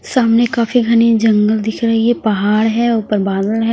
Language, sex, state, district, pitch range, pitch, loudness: Hindi, female, Himachal Pradesh, Shimla, 215-230 Hz, 225 Hz, -14 LUFS